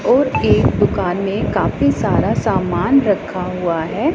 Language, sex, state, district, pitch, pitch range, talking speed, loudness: Hindi, female, Punjab, Pathankot, 185 Hz, 180-210 Hz, 145 wpm, -16 LUFS